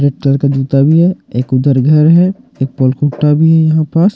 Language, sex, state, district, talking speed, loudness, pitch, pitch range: Hindi, male, Jharkhand, Ranchi, 230 wpm, -11 LUFS, 145 Hz, 135-160 Hz